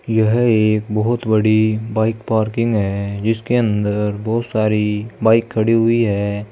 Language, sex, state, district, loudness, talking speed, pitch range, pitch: Hindi, male, Uttar Pradesh, Saharanpur, -17 LUFS, 140 wpm, 105-115 Hz, 110 Hz